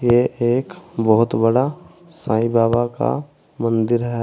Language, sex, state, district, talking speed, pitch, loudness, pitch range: Hindi, male, Uttar Pradesh, Saharanpur, 125 wpm, 120 Hz, -19 LUFS, 115-145 Hz